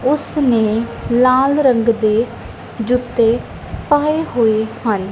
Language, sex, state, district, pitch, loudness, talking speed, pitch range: Punjabi, female, Punjab, Kapurthala, 235 Hz, -16 LUFS, 105 wpm, 225-265 Hz